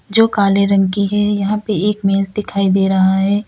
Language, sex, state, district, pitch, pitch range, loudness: Hindi, female, Uttar Pradesh, Lalitpur, 200 Hz, 195-205 Hz, -15 LUFS